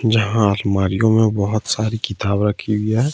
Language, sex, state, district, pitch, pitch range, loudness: Hindi, male, Jharkhand, Ranchi, 110 Hz, 100-110 Hz, -18 LUFS